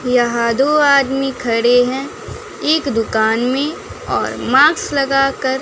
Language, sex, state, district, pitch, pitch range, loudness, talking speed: Hindi, female, Bihar, West Champaran, 265 Hz, 240-275 Hz, -15 LUFS, 130 wpm